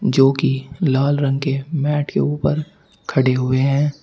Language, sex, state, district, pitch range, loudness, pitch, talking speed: Hindi, male, Uttar Pradesh, Shamli, 130-145 Hz, -19 LUFS, 135 Hz, 165 wpm